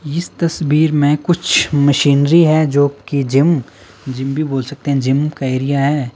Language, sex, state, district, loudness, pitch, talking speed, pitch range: Hindi, male, Himachal Pradesh, Shimla, -15 LUFS, 145 Hz, 165 wpm, 135-155 Hz